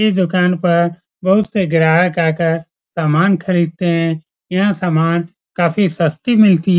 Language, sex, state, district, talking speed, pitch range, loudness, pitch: Hindi, male, Bihar, Supaul, 140 wpm, 165-185 Hz, -15 LUFS, 175 Hz